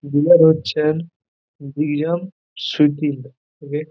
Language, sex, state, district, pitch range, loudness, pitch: Bengali, male, West Bengal, Purulia, 145-160 Hz, -18 LUFS, 150 Hz